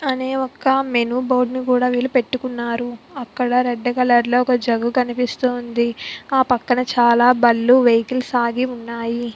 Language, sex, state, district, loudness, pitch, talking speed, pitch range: Telugu, female, Andhra Pradesh, Visakhapatnam, -18 LUFS, 250 Hz, 140 wpm, 240-255 Hz